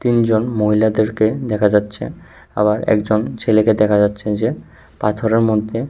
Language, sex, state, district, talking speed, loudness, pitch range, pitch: Bengali, male, Tripura, West Tripura, 120 wpm, -16 LUFS, 105-110 Hz, 110 Hz